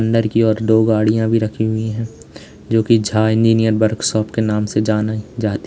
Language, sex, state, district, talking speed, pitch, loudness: Hindi, male, Uttar Pradesh, Lalitpur, 200 wpm, 110 Hz, -16 LUFS